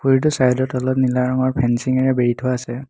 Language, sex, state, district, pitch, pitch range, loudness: Assamese, male, Assam, Hailakandi, 130 Hz, 125-130 Hz, -18 LUFS